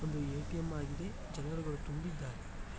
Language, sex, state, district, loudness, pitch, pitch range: Kannada, male, Karnataka, Mysore, -41 LUFS, 145 Hz, 95-155 Hz